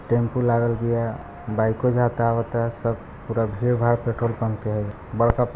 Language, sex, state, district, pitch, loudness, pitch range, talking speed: Hindi, male, Bihar, Gopalganj, 115 Hz, -23 LUFS, 115-120 Hz, 195 wpm